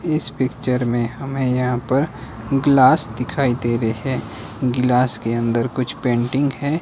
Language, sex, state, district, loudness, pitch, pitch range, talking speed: Hindi, male, Himachal Pradesh, Shimla, -19 LUFS, 125 Hz, 120-135 Hz, 150 wpm